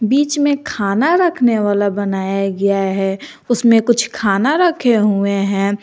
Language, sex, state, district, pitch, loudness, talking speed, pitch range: Hindi, female, Jharkhand, Garhwa, 210 Hz, -15 LUFS, 145 wpm, 200-250 Hz